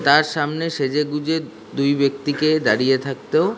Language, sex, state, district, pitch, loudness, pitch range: Bengali, male, West Bengal, Dakshin Dinajpur, 145 Hz, -20 LUFS, 140-155 Hz